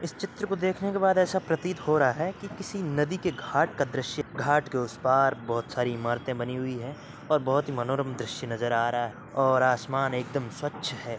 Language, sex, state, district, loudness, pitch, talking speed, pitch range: Hindi, male, Uttar Pradesh, Varanasi, -28 LUFS, 140 Hz, 230 wpm, 125-155 Hz